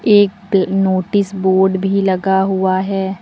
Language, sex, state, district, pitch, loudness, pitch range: Hindi, female, Uttar Pradesh, Lucknow, 190 Hz, -15 LUFS, 190-195 Hz